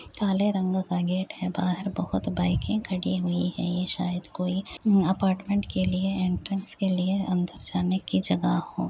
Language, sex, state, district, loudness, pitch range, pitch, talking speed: Hindi, female, Uttar Pradesh, Jyotiba Phule Nagar, -27 LUFS, 180-195 Hz, 185 Hz, 170 wpm